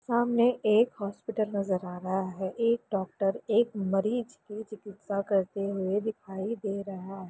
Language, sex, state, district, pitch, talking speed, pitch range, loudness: Hindi, female, Bihar, Gaya, 200 Hz, 155 wpm, 195-220 Hz, -30 LUFS